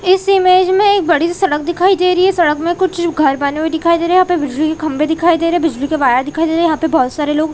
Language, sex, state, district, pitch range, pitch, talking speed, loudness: Hindi, female, Chhattisgarh, Rajnandgaon, 310-365 Hz, 335 Hz, 335 wpm, -13 LUFS